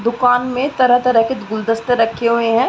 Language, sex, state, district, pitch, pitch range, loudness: Hindi, female, Uttar Pradesh, Gorakhpur, 235 Hz, 230-250 Hz, -15 LUFS